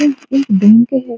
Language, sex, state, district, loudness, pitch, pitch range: Hindi, female, Bihar, Supaul, -11 LUFS, 260 Hz, 230-275 Hz